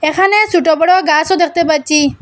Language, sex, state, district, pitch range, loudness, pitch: Bengali, female, Assam, Hailakandi, 310-365 Hz, -11 LUFS, 325 Hz